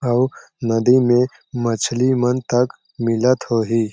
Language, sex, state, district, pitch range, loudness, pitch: Chhattisgarhi, male, Chhattisgarh, Jashpur, 115-125 Hz, -18 LUFS, 120 Hz